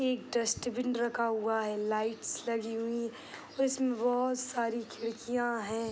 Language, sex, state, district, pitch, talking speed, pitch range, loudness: Hindi, female, Bihar, East Champaran, 235 Hz, 150 wpm, 225-245 Hz, -33 LUFS